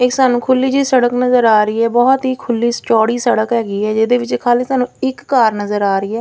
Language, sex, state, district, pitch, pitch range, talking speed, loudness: Punjabi, female, Punjab, Fazilka, 240 Hz, 220-255 Hz, 250 wpm, -14 LUFS